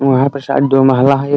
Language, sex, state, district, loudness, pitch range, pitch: Hindi, male, Bihar, Muzaffarpur, -12 LUFS, 135-140 Hz, 135 Hz